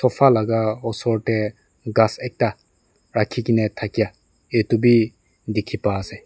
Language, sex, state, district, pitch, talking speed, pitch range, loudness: Nagamese, male, Nagaland, Dimapur, 110 Hz, 135 wpm, 105-115 Hz, -21 LUFS